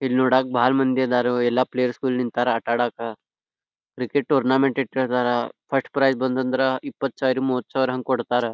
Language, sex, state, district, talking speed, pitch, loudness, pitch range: Kannada, male, Karnataka, Belgaum, 160 wpm, 130 Hz, -22 LUFS, 125-130 Hz